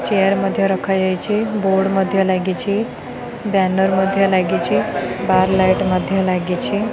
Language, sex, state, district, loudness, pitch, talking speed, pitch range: Odia, female, Odisha, Khordha, -17 LUFS, 190 Hz, 110 wpm, 185-195 Hz